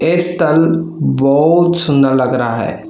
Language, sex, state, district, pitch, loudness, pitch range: Hindi, male, Telangana, Hyderabad, 155 Hz, -13 LUFS, 135-170 Hz